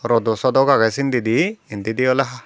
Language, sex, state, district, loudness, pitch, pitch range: Chakma, female, Tripura, Dhalai, -18 LUFS, 130 Hz, 110-135 Hz